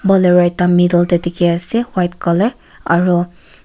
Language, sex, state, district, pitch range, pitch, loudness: Nagamese, female, Nagaland, Kohima, 175-185 Hz, 175 Hz, -14 LUFS